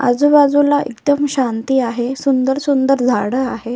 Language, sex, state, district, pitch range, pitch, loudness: Marathi, female, Maharashtra, Solapur, 245-285 Hz, 265 Hz, -15 LUFS